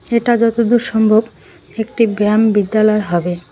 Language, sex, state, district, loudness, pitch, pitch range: Bengali, female, West Bengal, Cooch Behar, -14 LUFS, 220 Hz, 205-230 Hz